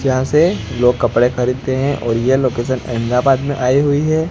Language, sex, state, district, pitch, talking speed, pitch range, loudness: Hindi, male, Gujarat, Gandhinagar, 130 Hz, 195 wpm, 120-135 Hz, -16 LUFS